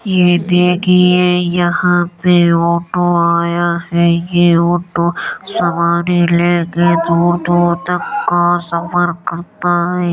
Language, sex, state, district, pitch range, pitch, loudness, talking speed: Hindi, male, Uttar Pradesh, Jyotiba Phule Nagar, 170-180 Hz, 175 Hz, -13 LUFS, 100 wpm